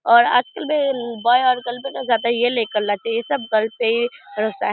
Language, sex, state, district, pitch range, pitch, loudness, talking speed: Hindi, female, Bihar, Purnia, 230-245 Hz, 235 Hz, -20 LUFS, 190 wpm